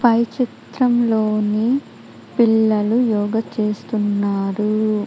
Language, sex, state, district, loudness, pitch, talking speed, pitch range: Telugu, female, Telangana, Adilabad, -19 LUFS, 215 Hz, 60 wpm, 210-235 Hz